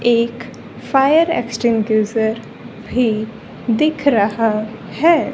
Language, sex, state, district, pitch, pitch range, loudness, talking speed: Hindi, female, Haryana, Jhajjar, 230 Hz, 220-250 Hz, -17 LUFS, 80 wpm